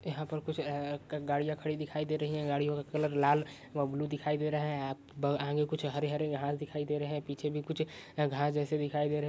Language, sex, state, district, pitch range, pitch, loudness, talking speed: Magahi, male, Bihar, Gaya, 145-150 Hz, 150 Hz, -34 LUFS, 240 wpm